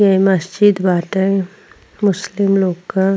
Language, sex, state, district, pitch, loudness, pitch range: Bhojpuri, female, Uttar Pradesh, Ghazipur, 195 Hz, -16 LUFS, 185-200 Hz